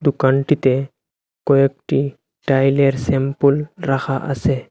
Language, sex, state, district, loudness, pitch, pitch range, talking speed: Bengali, male, Assam, Hailakandi, -18 LUFS, 135 Hz, 135-140 Hz, 75 wpm